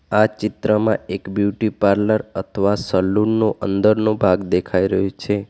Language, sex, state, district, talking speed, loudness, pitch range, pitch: Gujarati, male, Gujarat, Valsad, 140 wpm, -19 LUFS, 100-110 Hz, 105 Hz